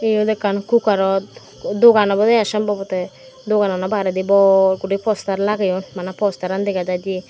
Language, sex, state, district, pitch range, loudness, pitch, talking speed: Chakma, female, Tripura, Dhalai, 190-210 Hz, -17 LUFS, 195 Hz, 140 wpm